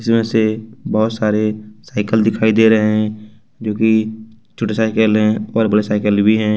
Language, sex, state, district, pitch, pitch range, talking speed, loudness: Hindi, male, Jharkhand, Ranchi, 110 Hz, 105-110 Hz, 175 wpm, -16 LUFS